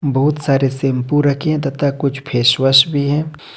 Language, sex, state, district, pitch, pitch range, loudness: Hindi, male, Jharkhand, Ranchi, 140 Hz, 135-145 Hz, -15 LUFS